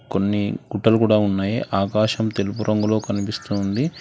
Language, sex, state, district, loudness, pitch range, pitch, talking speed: Telugu, male, Telangana, Hyderabad, -21 LUFS, 100-110 Hz, 105 Hz, 135 wpm